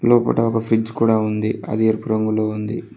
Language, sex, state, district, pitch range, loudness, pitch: Telugu, male, Telangana, Mahabubabad, 110-115 Hz, -19 LUFS, 110 Hz